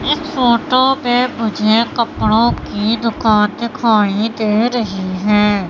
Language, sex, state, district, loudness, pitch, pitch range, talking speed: Hindi, female, Madhya Pradesh, Katni, -15 LUFS, 225 Hz, 210-240 Hz, 115 wpm